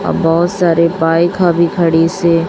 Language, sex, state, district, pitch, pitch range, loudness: Hindi, female, Chhattisgarh, Raipur, 170 Hz, 165-175 Hz, -12 LUFS